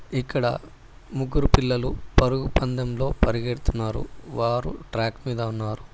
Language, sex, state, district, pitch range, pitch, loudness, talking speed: Telugu, male, Telangana, Hyderabad, 115-130 Hz, 120 Hz, -26 LUFS, 90 wpm